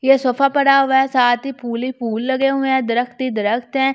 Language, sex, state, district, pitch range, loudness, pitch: Hindi, female, Delhi, New Delhi, 245-270 Hz, -17 LUFS, 260 Hz